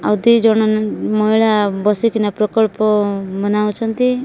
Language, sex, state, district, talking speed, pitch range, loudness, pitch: Odia, female, Odisha, Malkangiri, 125 wpm, 210-225 Hz, -15 LUFS, 215 Hz